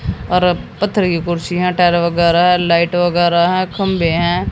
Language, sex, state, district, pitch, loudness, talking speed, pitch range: Hindi, female, Haryana, Jhajjar, 175 Hz, -15 LUFS, 170 wpm, 170-180 Hz